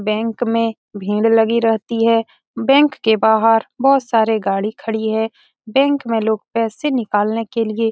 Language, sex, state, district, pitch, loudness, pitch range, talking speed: Hindi, female, Bihar, Saran, 225 Hz, -17 LUFS, 220-235 Hz, 165 wpm